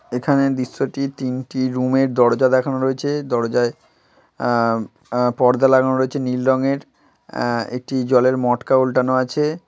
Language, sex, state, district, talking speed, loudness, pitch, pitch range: Bengali, male, West Bengal, Kolkata, 130 wpm, -19 LUFS, 130 Hz, 125-135 Hz